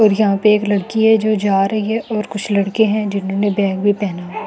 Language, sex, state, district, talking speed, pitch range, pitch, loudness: Hindi, female, Delhi, New Delhi, 240 wpm, 200-215 Hz, 205 Hz, -16 LUFS